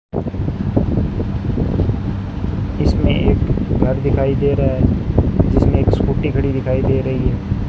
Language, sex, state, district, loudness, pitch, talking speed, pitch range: Hindi, male, Rajasthan, Bikaner, -17 LUFS, 95 Hz, 125 wpm, 95-105 Hz